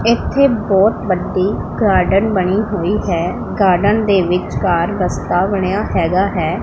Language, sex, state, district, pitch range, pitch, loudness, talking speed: Punjabi, female, Punjab, Pathankot, 185-210 Hz, 195 Hz, -15 LUFS, 125 wpm